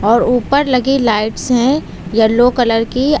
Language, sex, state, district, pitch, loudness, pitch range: Hindi, female, Uttar Pradesh, Lucknow, 245 Hz, -14 LUFS, 225-260 Hz